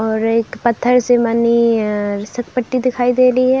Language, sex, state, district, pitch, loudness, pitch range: Hindi, female, Bihar, Saran, 235 Hz, -15 LUFS, 225-250 Hz